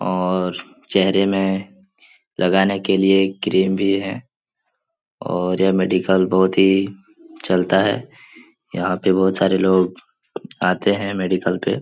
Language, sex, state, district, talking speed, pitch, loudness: Hindi, male, Uttar Pradesh, Etah, 130 wpm, 95 Hz, -18 LUFS